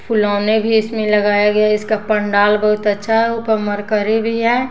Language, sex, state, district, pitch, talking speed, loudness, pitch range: Hindi, female, Bihar, West Champaran, 215 Hz, 190 wpm, -15 LUFS, 210-225 Hz